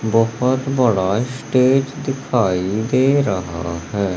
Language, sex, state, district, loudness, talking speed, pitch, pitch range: Hindi, male, Madhya Pradesh, Umaria, -18 LUFS, 100 wpm, 120 Hz, 95-130 Hz